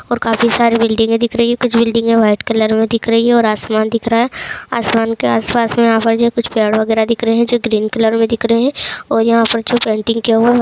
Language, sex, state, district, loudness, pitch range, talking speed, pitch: Hindi, female, Uttar Pradesh, Jalaun, -14 LUFS, 225-235 Hz, 275 wpm, 230 Hz